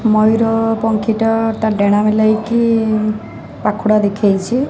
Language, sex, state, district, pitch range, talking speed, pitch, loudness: Odia, female, Odisha, Sambalpur, 215-225 Hz, 100 wpm, 220 Hz, -15 LUFS